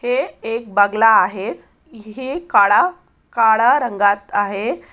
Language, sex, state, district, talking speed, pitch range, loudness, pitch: Marathi, female, Maharashtra, Aurangabad, 95 wpm, 205-255 Hz, -16 LUFS, 225 Hz